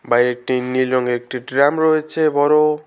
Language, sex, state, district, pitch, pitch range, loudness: Bengali, male, West Bengal, Alipurduar, 130 Hz, 125-150 Hz, -17 LUFS